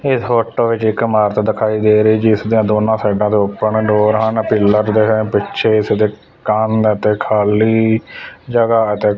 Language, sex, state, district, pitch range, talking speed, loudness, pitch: Punjabi, male, Punjab, Fazilka, 105-110 Hz, 155 wpm, -14 LUFS, 110 Hz